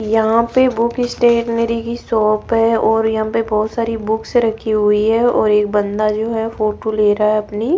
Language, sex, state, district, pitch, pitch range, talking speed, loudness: Hindi, female, Rajasthan, Jaipur, 225 Hz, 215-230 Hz, 195 wpm, -16 LUFS